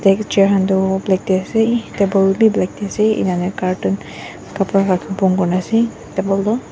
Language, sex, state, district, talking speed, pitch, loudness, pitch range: Nagamese, female, Nagaland, Dimapur, 195 wpm, 195 Hz, -17 LUFS, 185-210 Hz